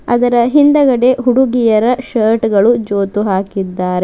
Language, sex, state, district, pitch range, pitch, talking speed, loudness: Kannada, female, Karnataka, Bidar, 200-250 Hz, 230 Hz, 105 wpm, -12 LUFS